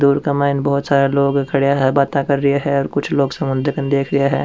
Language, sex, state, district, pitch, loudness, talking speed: Rajasthani, male, Rajasthan, Churu, 140 Hz, -17 LUFS, 255 wpm